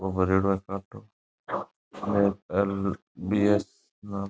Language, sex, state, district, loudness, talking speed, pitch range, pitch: Marwari, male, Rajasthan, Nagaur, -27 LUFS, 85 wpm, 95-105 Hz, 100 Hz